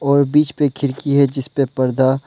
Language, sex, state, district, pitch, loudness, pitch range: Hindi, male, Arunachal Pradesh, Lower Dibang Valley, 140 Hz, -17 LUFS, 135-140 Hz